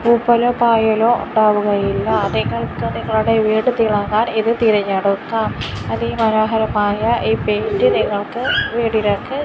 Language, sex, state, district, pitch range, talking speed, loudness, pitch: Malayalam, female, Kerala, Kasaragod, 205-235 Hz, 95 wpm, -17 LUFS, 220 Hz